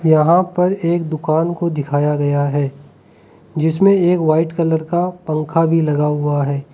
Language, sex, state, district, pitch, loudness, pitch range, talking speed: Hindi, male, Arunachal Pradesh, Lower Dibang Valley, 160 Hz, -16 LUFS, 150-170 Hz, 150 wpm